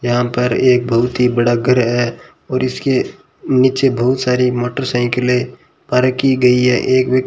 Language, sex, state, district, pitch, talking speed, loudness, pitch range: Hindi, male, Rajasthan, Bikaner, 125 Hz, 175 wpm, -15 LUFS, 125-130 Hz